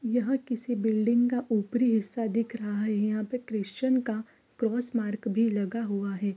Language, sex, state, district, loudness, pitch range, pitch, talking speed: Hindi, female, Bihar, East Champaran, -29 LUFS, 210-240 Hz, 225 Hz, 180 wpm